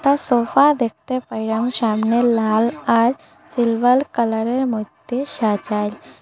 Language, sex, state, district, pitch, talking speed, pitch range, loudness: Bengali, female, Assam, Hailakandi, 235 Hz, 95 wpm, 220-255 Hz, -19 LUFS